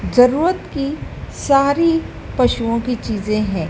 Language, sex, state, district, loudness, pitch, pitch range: Hindi, female, Madhya Pradesh, Dhar, -18 LUFS, 250 Hz, 230-285 Hz